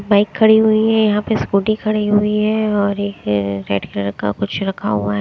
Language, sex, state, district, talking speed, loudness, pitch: Hindi, female, Haryana, Rohtak, 220 wpm, -17 LUFS, 205 Hz